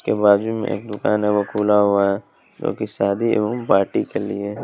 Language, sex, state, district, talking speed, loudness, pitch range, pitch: Hindi, male, Bihar, West Champaran, 235 wpm, -20 LUFS, 100-105 Hz, 105 Hz